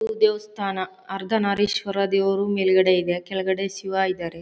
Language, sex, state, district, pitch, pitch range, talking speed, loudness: Kannada, female, Karnataka, Chamarajanagar, 195 Hz, 190-200 Hz, 135 wpm, -23 LUFS